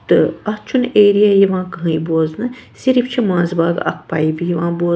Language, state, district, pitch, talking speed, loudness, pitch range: Kashmiri, Punjab, Kapurthala, 185 Hz, 155 wpm, -16 LUFS, 170-210 Hz